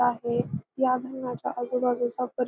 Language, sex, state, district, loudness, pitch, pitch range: Marathi, female, Maharashtra, Pune, -28 LUFS, 250 Hz, 245-255 Hz